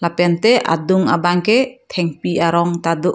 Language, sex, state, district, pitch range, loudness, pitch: Karbi, female, Assam, Karbi Anglong, 170-190 Hz, -16 LUFS, 175 Hz